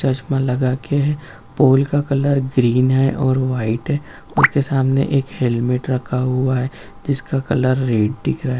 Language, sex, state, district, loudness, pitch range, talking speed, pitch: Hindi, male, Bihar, Jamui, -18 LUFS, 125-140 Hz, 165 wpm, 130 Hz